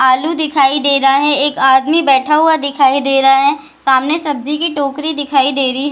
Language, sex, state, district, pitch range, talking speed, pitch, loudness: Hindi, female, Bihar, Jahanabad, 270-295 Hz, 215 wpm, 280 Hz, -12 LUFS